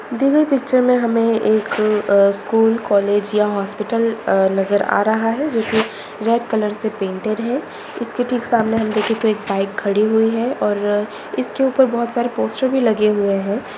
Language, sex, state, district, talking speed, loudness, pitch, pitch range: Hindi, female, Bihar, Madhepura, 185 wpm, -18 LUFS, 220 Hz, 205-235 Hz